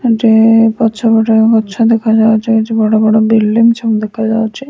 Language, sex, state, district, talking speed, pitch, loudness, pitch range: Odia, female, Odisha, Sambalpur, 115 wpm, 225 Hz, -10 LUFS, 220-225 Hz